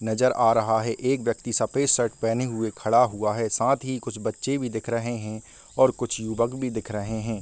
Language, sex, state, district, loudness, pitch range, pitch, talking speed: Hindi, male, Bihar, Kishanganj, -25 LUFS, 110-125 Hz, 115 Hz, 235 wpm